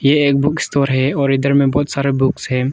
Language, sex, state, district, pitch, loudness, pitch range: Hindi, male, Arunachal Pradesh, Longding, 140 Hz, -16 LUFS, 135-140 Hz